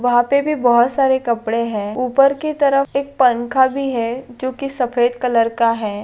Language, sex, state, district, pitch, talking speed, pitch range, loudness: Hindi, female, Rajasthan, Nagaur, 250 Hz, 200 wpm, 235-275 Hz, -17 LUFS